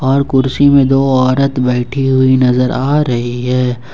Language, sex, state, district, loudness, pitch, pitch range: Hindi, male, Jharkhand, Ranchi, -12 LUFS, 130 Hz, 125-135 Hz